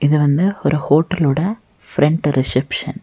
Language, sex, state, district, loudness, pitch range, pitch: Tamil, female, Tamil Nadu, Nilgiris, -17 LUFS, 140-165 Hz, 145 Hz